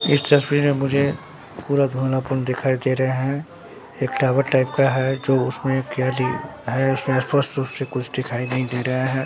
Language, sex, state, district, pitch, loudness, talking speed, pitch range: Hindi, male, Bihar, Katihar, 130 Hz, -21 LUFS, 180 wpm, 130-140 Hz